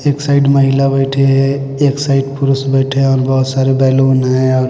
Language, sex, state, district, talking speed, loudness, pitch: Hindi, male, Bihar, Kaimur, 190 wpm, -12 LUFS, 135 Hz